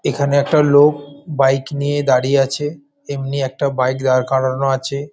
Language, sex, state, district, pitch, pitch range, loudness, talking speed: Bengali, male, West Bengal, Paschim Medinipur, 140 Hz, 135-145 Hz, -16 LUFS, 165 wpm